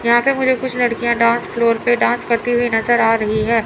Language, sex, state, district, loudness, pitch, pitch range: Hindi, female, Chandigarh, Chandigarh, -16 LUFS, 235 Hz, 230-245 Hz